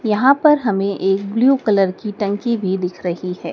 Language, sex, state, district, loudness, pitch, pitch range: Hindi, female, Madhya Pradesh, Dhar, -17 LUFS, 200 Hz, 190-230 Hz